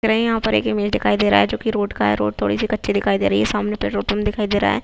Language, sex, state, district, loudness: Hindi, female, Jharkhand, Sahebganj, -19 LUFS